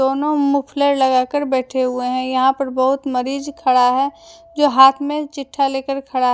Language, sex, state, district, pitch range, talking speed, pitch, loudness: Hindi, female, Jharkhand, Deoghar, 255-285 Hz, 190 wpm, 270 Hz, -17 LUFS